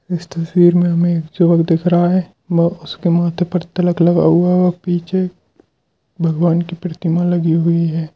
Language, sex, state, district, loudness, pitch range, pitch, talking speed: Hindi, male, Bihar, Madhepura, -16 LUFS, 170-175 Hz, 175 Hz, 170 wpm